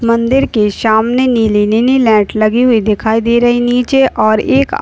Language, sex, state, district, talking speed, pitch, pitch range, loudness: Hindi, male, Uttar Pradesh, Deoria, 200 wpm, 230 Hz, 220-250 Hz, -11 LUFS